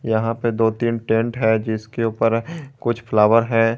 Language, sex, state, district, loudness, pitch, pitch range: Hindi, male, Jharkhand, Garhwa, -20 LUFS, 115 Hz, 110-115 Hz